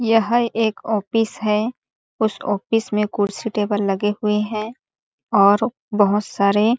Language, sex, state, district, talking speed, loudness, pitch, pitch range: Hindi, female, Chhattisgarh, Sarguja, 135 wpm, -20 LUFS, 215 Hz, 205-225 Hz